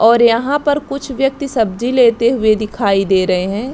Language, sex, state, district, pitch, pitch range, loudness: Hindi, female, Chhattisgarh, Raigarh, 235 Hz, 210-270 Hz, -14 LUFS